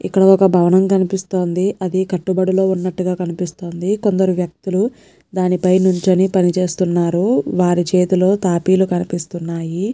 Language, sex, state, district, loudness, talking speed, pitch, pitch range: Telugu, female, Telangana, Nalgonda, -16 LUFS, 100 wpm, 185 Hz, 180-190 Hz